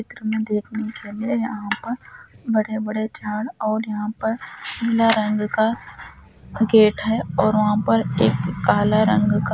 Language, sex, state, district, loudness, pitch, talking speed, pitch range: Hindi, female, Rajasthan, Nagaur, -21 LUFS, 215 Hz, 155 wpm, 210-225 Hz